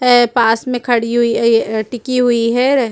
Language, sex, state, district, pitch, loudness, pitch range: Hindi, female, Chhattisgarh, Rajnandgaon, 240 Hz, -14 LUFS, 230-250 Hz